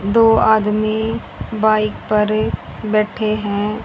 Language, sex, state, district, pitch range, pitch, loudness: Hindi, female, Haryana, Rohtak, 210-220 Hz, 215 Hz, -17 LUFS